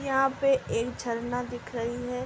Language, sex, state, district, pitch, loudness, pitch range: Hindi, female, Uttar Pradesh, Hamirpur, 245 Hz, -29 LUFS, 240-265 Hz